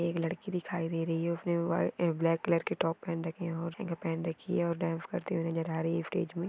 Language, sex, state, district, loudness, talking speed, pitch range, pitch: Hindi, female, Maharashtra, Nagpur, -33 LUFS, 270 wpm, 165-175 Hz, 170 Hz